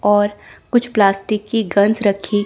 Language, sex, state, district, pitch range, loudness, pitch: Hindi, female, Chandigarh, Chandigarh, 200-215 Hz, -17 LUFS, 205 Hz